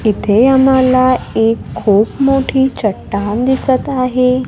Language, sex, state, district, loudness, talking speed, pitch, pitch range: Marathi, female, Maharashtra, Gondia, -13 LUFS, 105 wpm, 255 Hz, 225-265 Hz